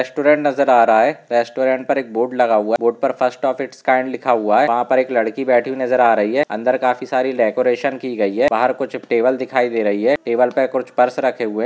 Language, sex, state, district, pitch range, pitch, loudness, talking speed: Hindi, male, Andhra Pradesh, Guntur, 120-130 Hz, 125 Hz, -17 LUFS, 270 wpm